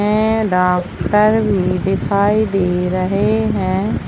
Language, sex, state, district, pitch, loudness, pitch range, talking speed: Hindi, female, Bihar, Darbhanga, 190 Hz, -16 LUFS, 180-210 Hz, 105 wpm